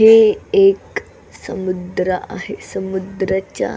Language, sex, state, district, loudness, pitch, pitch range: Marathi, female, Maharashtra, Solapur, -18 LUFS, 190 Hz, 185-220 Hz